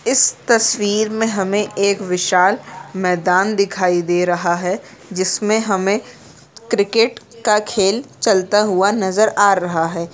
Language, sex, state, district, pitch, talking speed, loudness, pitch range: Hindi, female, Jharkhand, Jamtara, 200 Hz, 130 wpm, -17 LUFS, 185-215 Hz